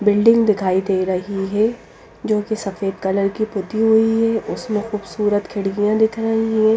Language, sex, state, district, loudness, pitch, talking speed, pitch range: Hindi, female, Bihar, Patna, -19 LUFS, 210 Hz, 170 wpm, 195-220 Hz